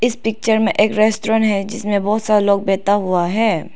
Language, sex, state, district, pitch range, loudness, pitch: Hindi, female, Arunachal Pradesh, Lower Dibang Valley, 200-220 Hz, -17 LUFS, 210 Hz